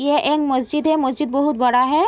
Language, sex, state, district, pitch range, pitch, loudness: Hindi, female, Uttar Pradesh, Etah, 265-300 Hz, 290 Hz, -18 LUFS